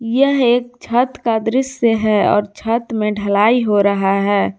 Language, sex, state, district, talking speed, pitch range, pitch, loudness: Hindi, female, Jharkhand, Garhwa, 170 wpm, 205-245 Hz, 225 Hz, -16 LUFS